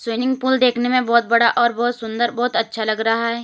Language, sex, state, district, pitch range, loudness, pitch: Hindi, female, Uttar Pradesh, Lalitpur, 230-245 Hz, -18 LUFS, 235 Hz